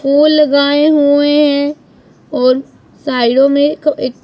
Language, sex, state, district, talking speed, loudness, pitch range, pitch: Hindi, female, Punjab, Pathankot, 115 wpm, -11 LUFS, 275-295 Hz, 285 Hz